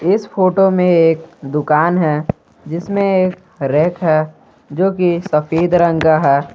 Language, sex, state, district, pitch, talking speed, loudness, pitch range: Hindi, male, Jharkhand, Garhwa, 165 Hz, 145 wpm, -15 LUFS, 155-185 Hz